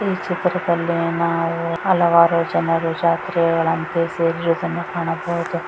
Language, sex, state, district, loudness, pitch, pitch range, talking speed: Kannada, female, Karnataka, Raichur, -19 LUFS, 170 Hz, 165-170 Hz, 85 wpm